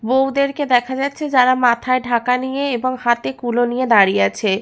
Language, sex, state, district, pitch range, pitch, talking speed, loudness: Bengali, female, West Bengal, Paschim Medinipur, 240-265 Hz, 250 Hz, 170 wpm, -17 LUFS